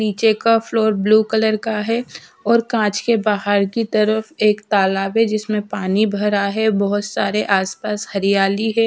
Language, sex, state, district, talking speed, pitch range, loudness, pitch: Hindi, female, Chhattisgarh, Raipur, 170 wpm, 205-220 Hz, -18 LUFS, 215 Hz